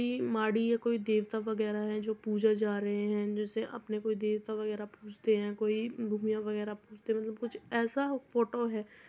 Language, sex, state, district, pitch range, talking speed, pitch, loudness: Hindi, female, Uttar Pradesh, Muzaffarnagar, 210-225 Hz, 185 wpm, 215 Hz, -33 LUFS